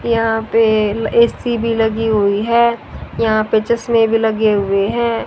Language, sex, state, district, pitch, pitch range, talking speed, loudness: Hindi, female, Haryana, Rohtak, 225 Hz, 215-235 Hz, 160 wpm, -15 LUFS